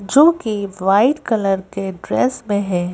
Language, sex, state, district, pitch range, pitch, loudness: Hindi, female, Madhya Pradesh, Bhopal, 195-250 Hz, 200 Hz, -18 LUFS